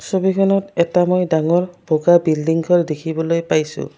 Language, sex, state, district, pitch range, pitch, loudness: Assamese, female, Assam, Kamrup Metropolitan, 160-180 Hz, 170 Hz, -17 LUFS